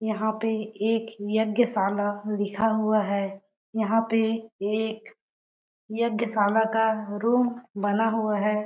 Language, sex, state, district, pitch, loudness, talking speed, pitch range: Hindi, female, Chhattisgarh, Balrampur, 220 Hz, -26 LUFS, 110 wpm, 205-225 Hz